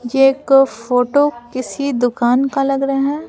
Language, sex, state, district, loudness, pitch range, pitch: Hindi, female, Bihar, Patna, -16 LUFS, 245-275 Hz, 270 Hz